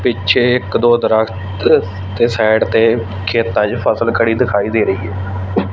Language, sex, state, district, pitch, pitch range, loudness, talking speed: Punjabi, male, Punjab, Fazilka, 110 Hz, 95-115 Hz, -15 LUFS, 155 wpm